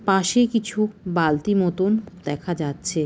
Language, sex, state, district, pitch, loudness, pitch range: Bengali, female, West Bengal, Kolkata, 185 Hz, -22 LUFS, 165-210 Hz